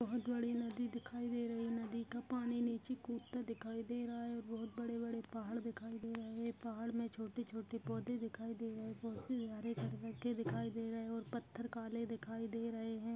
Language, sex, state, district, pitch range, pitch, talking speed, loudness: Hindi, female, Maharashtra, Pune, 225-240 Hz, 230 Hz, 215 wpm, -44 LUFS